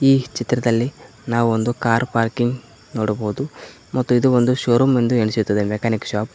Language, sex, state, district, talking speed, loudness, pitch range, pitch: Kannada, male, Karnataka, Koppal, 140 wpm, -19 LUFS, 110-125 Hz, 120 Hz